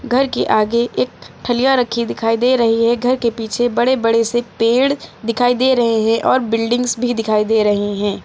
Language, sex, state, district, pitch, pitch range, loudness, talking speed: Hindi, female, Uttar Pradesh, Lucknow, 235 Hz, 225-245 Hz, -16 LUFS, 205 wpm